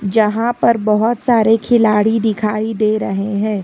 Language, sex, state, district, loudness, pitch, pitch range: Hindi, female, Karnataka, Bangalore, -15 LUFS, 215 Hz, 210-225 Hz